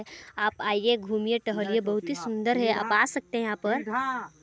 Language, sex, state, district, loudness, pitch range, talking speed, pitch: Hindi, female, Chhattisgarh, Balrampur, -27 LUFS, 210-240 Hz, 190 wpm, 220 Hz